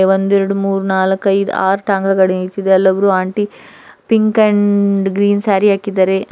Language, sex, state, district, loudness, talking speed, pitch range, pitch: Kannada, female, Karnataka, Gulbarga, -14 LUFS, 140 wpm, 190-205 Hz, 195 Hz